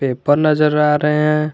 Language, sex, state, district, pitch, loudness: Hindi, male, Jharkhand, Garhwa, 150 Hz, -15 LUFS